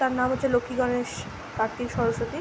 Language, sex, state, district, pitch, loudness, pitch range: Bengali, female, West Bengal, Purulia, 245 Hz, -27 LUFS, 230-255 Hz